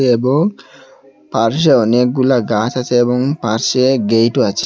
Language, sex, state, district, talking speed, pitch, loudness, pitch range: Bengali, male, Assam, Hailakandi, 115 wpm, 125 Hz, -14 LUFS, 115-130 Hz